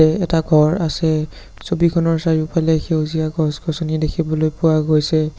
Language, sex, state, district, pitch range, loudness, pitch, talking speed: Assamese, male, Assam, Sonitpur, 155-165 Hz, -18 LUFS, 160 Hz, 110 wpm